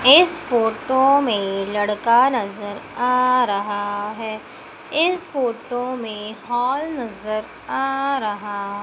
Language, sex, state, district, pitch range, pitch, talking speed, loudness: Hindi, female, Madhya Pradesh, Umaria, 210-265 Hz, 235 Hz, 100 wpm, -21 LUFS